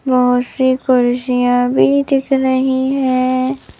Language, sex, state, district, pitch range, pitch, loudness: Hindi, female, Madhya Pradesh, Bhopal, 250-265 Hz, 255 Hz, -15 LUFS